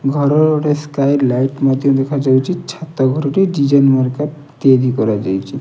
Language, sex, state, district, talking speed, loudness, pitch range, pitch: Odia, male, Odisha, Nuapada, 130 wpm, -15 LUFS, 130-150 Hz, 140 Hz